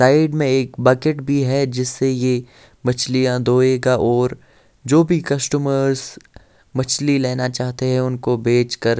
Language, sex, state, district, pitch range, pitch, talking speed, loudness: Hindi, male, Bihar, Patna, 125-140 Hz, 130 Hz, 135 wpm, -18 LUFS